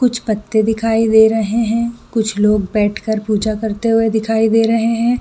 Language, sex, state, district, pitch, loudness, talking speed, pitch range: Hindi, female, Jharkhand, Jamtara, 220 Hz, -15 LUFS, 195 wpm, 215-230 Hz